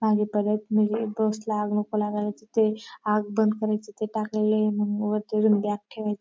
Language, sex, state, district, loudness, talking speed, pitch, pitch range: Marathi, female, Maharashtra, Dhule, -26 LUFS, 185 wpm, 215 Hz, 210-215 Hz